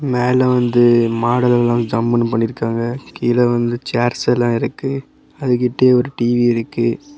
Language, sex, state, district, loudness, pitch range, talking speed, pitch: Tamil, male, Tamil Nadu, Kanyakumari, -16 LUFS, 120-125 Hz, 135 wpm, 120 Hz